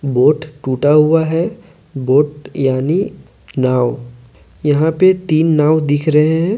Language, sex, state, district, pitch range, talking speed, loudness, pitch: Hindi, male, Jharkhand, Deoghar, 135-160 Hz, 130 wpm, -15 LUFS, 150 Hz